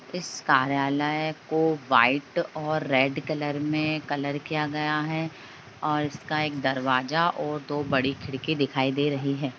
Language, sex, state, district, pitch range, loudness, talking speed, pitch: Hindi, female, Jharkhand, Sahebganj, 135-155 Hz, -26 LUFS, 170 wpm, 145 Hz